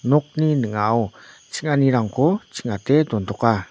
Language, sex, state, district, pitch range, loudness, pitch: Garo, male, Meghalaya, North Garo Hills, 110-150 Hz, -20 LUFS, 125 Hz